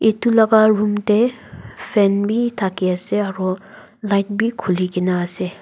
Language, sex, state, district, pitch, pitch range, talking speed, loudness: Nagamese, female, Nagaland, Dimapur, 205 Hz, 185-220 Hz, 150 wpm, -18 LUFS